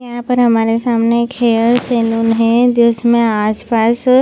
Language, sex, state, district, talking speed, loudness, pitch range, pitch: Hindi, female, Chhattisgarh, Bilaspur, 130 wpm, -13 LUFS, 225-240 Hz, 235 Hz